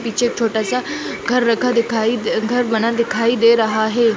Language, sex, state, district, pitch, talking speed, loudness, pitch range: Hindi, female, Uttar Pradesh, Jalaun, 230 Hz, 170 wpm, -17 LUFS, 225-240 Hz